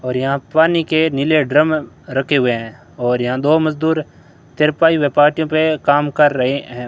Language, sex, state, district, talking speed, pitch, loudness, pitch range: Hindi, male, Rajasthan, Bikaner, 185 wpm, 150 Hz, -16 LUFS, 130-155 Hz